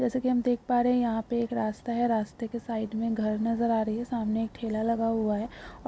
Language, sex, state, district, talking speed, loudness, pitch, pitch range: Hindi, female, Andhra Pradesh, Visakhapatnam, 265 wpm, -29 LUFS, 230 Hz, 220-240 Hz